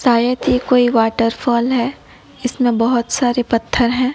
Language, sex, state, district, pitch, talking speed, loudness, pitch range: Hindi, female, Odisha, Nuapada, 245 Hz, 160 wpm, -16 LUFS, 235-250 Hz